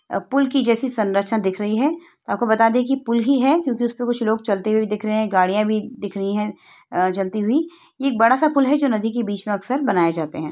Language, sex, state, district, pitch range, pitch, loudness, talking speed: Hindi, female, Uttar Pradesh, Etah, 205-265 Hz, 225 Hz, -20 LUFS, 270 wpm